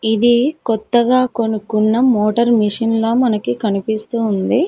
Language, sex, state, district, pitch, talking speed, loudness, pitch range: Telugu, female, Telangana, Mahabubabad, 225 Hz, 115 wpm, -16 LUFS, 215-240 Hz